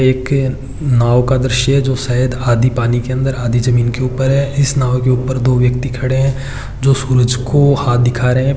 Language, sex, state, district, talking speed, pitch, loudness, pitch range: Hindi, male, Rajasthan, Churu, 210 wpm, 130 Hz, -14 LUFS, 125-135 Hz